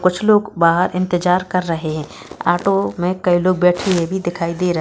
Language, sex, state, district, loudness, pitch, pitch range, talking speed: Hindi, female, Bihar, East Champaran, -17 LUFS, 180 Hz, 175-185 Hz, 210 wpm